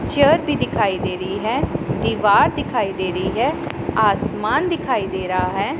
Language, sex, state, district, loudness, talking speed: Hindi, male, Punjab, Pathankot, -19 LUFS, 165 wpm